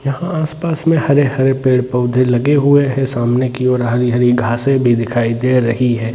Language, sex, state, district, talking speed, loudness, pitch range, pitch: Hindi, male, Jharkhand, Sahebganj, 175 wpm, -14 LUFS, 120-140 Hz, 125 Hz